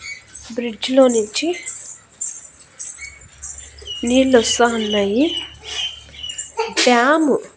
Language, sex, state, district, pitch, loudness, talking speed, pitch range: Telugu, female, Andhra Pradesh, Annamaya, 250 Hz, -18 LUFS, 55 wpm, 230-305 Hz